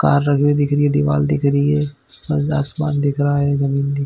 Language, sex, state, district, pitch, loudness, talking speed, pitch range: Hindi, male, Chhattisgarh, Bilaspur, 145 Hz, -18 LUFS, 250 wpm, 140-145 Hz